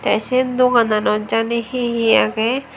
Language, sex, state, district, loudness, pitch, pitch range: Chakma, female, Tripura, Dhalai, -17 LUFS, 235 Hz, 220-250 Hz